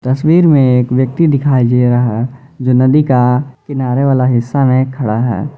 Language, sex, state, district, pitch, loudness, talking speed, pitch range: Hindi, male, Jharkhand, Ranchi, 130 Hz, -12 LUFS, 185 wpm, 125-140 Hz